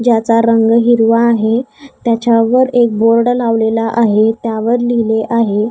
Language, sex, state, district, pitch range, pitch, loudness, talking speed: Marathi, female, Maharashtra, Gondia, 225-240 Hz, 230 Hz, -12 LUFS, 135 wpm